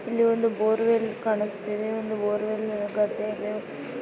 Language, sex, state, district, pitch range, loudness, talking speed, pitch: Kannada, female, Karnataka, Mysore, 210-225 Hz, -26 LUFS, 165 wpm, 215 Hz